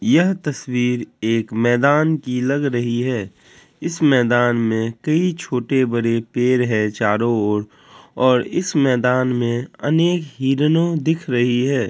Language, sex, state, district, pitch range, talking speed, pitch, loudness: Hindi, male, Bihar, Kishanganj, 120-150 Hz, 130 wpm, 125 Hz, -19 LUFS